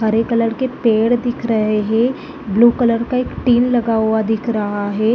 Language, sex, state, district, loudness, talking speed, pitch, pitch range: Hindi, female, Chhattisgarh, Rajnandgaon, -16 LUFS, 210 wpm, 230 Hz, 220-245 Hz